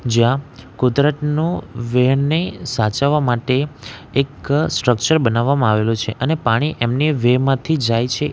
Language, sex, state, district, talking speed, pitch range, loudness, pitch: Gujarati, male, Gujarat, Valsad, 135 wpm, 120-150 Hz, -18 LUFS, 130 Hz